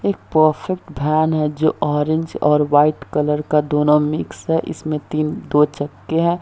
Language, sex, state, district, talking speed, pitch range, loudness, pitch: Hindi, female, Bihar, Jahanabad, 170 wpm, 150-155 Hz, -18 LUFS, 150 Hz